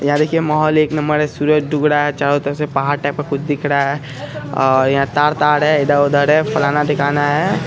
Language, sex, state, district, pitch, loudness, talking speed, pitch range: Hindi, male, Bihar, Araria, 145 Hz, -15 LUFS, 240 wpm, 145-150 Hz